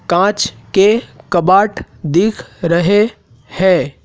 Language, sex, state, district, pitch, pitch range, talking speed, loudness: Hindi, male, Madhya Pradesh, Dhar, 190 Hz, 175-205 Hz, 90 wpm, -14 LUFS